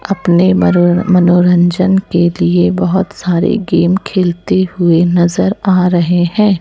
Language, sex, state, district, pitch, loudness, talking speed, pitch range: Hindi, male, Chhattisgarh, Raipur, 180 Hz, -11 LUFS, 125 wpm, 175-190 Hz